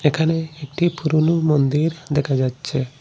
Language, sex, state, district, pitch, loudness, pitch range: Bengali, male, Assam, Hailakandi, 155 Hz, -20 LUFS, 140-160 Hz